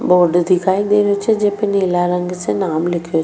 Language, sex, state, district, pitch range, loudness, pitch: Rajasthani, female, Rajasthan, Nagaur, 175-200 Hz, -16 LUFS, 180 Hz